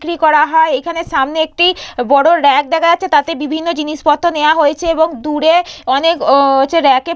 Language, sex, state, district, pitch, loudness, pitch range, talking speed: Bengali, female, West Bengal, Purulia, 315 Hz, -12 LUFS, 295-335 Hz, 175 wpm